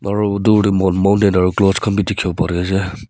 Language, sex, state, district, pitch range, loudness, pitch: Nagamese, male, Nagaland, Kohima, 95-100 Hz, -16 LUFS, 100 Hz